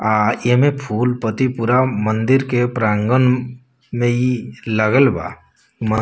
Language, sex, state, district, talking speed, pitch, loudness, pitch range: Bhojpuri, male, Bihar, Muzaffarpur, 150 wpm, 120 Hz, -17 LUFS, 110-125 Hz